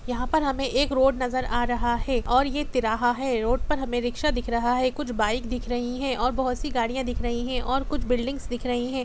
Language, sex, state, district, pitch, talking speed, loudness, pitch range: Hindi, female, Jharkhand, Jamtara, 250 Hz, 250 wpm, -26 LUFS, 240-265 Hz